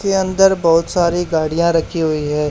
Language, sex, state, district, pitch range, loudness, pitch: Hindi, male, Haryana, Charkhi Dadri, 160-185 Hz, -16 LUFS, 170 Hz